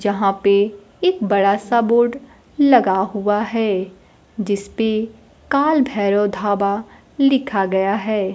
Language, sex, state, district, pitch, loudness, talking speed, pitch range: Hindi, female, Bihar, Kaimur, 205 Hz, -18 LUFS, 115 wpm, 200-230 Hz